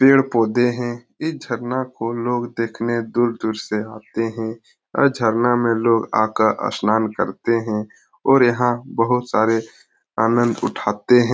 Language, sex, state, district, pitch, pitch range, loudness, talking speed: Hindi, male, Bihar, Lakhisarai, 115 Hz, 110-120 Hz, -20 LUFS, 135 wpm